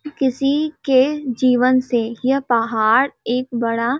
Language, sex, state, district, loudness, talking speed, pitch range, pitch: Hindi, female, Chhattisgarh, Balrampur, -18 LUFS, 120 wpm, 235-275 Hz, 255 Hz